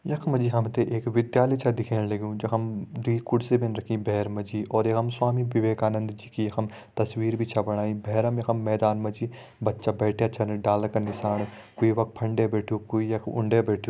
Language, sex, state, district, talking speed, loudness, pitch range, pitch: Hindi, male, Uttarakhand, Uttarkashi, 190 wpm, -27 LUFS, 105-115 Hz, 110 Hz